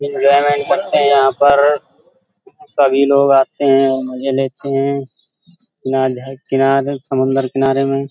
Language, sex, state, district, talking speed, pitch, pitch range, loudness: Hindi, male, Uttar Pradesh, Hamirpur, 120 wpm, 135 Hz, 135-140 Hz, -15 LUFS